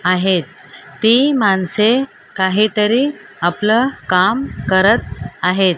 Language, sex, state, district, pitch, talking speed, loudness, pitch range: Marathi, female, Maharashtra, Mumbai Suburban, 210 Hz, 85 wpm, -15 LUFS, 185-230 Hz